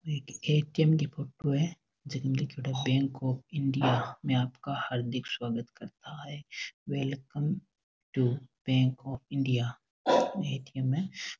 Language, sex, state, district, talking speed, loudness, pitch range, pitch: Marwari, male, Rajasthan, Nagaur, 125 wpm, -31 LUFS, 130-145 Hz, 135 Hz